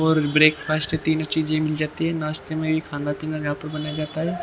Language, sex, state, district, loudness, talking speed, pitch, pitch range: Hindi, male, Haryana, Jhajjar, -23 LUFS, 230 wpm, 155 Hz, 155-160 Hz